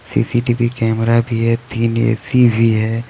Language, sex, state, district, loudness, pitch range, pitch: Hindi, male, Jharkhand, Deoghar, -16 LUFS, 115-120 Hz, 115 Hz